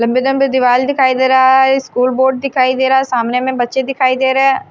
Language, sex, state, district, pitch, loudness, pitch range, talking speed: Hindi, female, Himachal Pradesh, Shimla, 260 Hz, -13 LUFS, 255-265 Hz, 255 wpm